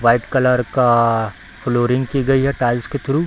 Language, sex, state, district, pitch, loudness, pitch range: Hindi, female, Bihar, Samastipur, 125 Hz, -17 LUFS, 120-135 Hz